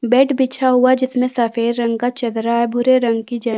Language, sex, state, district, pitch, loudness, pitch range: Hindi, female, Chhattisgarh, Kabirdham, 240 Hz, -16 LUFS, 235-255 Hz